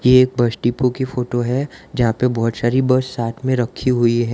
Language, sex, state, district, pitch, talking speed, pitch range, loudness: Hindi, male, Gujarat, Valsad, 125 Hz, 235 wpm, 120-130 Hz, -18 LUFS